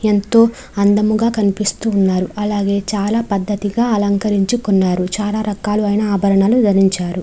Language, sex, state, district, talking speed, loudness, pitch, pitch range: Telugu, female, Andhra Pradesh, Krishna, 100 wpm, -16 LUFS, 205 Hz, 200-215 Hz